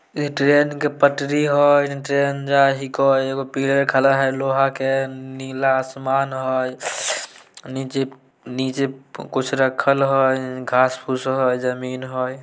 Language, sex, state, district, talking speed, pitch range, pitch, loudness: Maithili, male, Bihar, Samastipur, 135 wpm, 130-140 Hz, 135 Hz, -20 LUFS